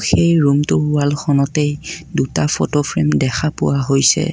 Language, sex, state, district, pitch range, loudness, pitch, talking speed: Assamese, male, Assam, Kamrup Metropolitan, 140-150 Hz, -16 LUFS, 145 Hz, 125 wpm